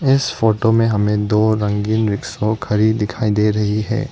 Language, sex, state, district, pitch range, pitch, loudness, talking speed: Hindi, male, Arunachal Pradesh, Lower Dibang Valley, 105-115 Hz, 110 Hz, -17 LUFS, 175 wpm